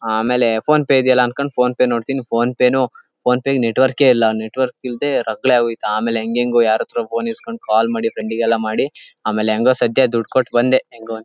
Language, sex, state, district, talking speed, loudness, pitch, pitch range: Kannada, male, Karnataka, Shimoga, 180 wpm, -17 LUFS, 120 Hz, 115-130 Hz